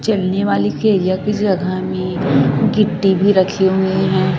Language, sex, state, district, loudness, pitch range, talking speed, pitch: Hindi, female, Chhattisgarh, Raipur, -16 LUFS, 185-200 Hz, 165 wpm, 190 Hz